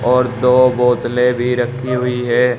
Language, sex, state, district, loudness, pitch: Hindi, male, Uttar Pradesh, Saharanpur, -15 LUFS, 125 Hz